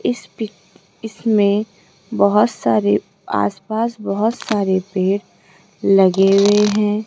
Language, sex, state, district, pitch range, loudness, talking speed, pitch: Hindi, female, Rajasthan, Jaipur, 190-215 Hz, -17 LUFS, 100 wpm, 200 Hz